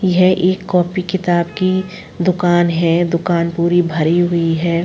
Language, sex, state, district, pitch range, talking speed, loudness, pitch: Hindi, female, Uttar Pradesh, Jalaun, 170-185 Hz, 150 wpm, -15 LUFS, 175 Hz